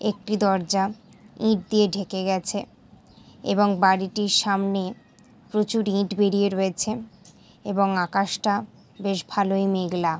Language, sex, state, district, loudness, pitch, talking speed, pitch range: Bengali, female, West Bengal, Malda, -24 LUFS, 200 Hz, 105 wpm, 190-210 Hz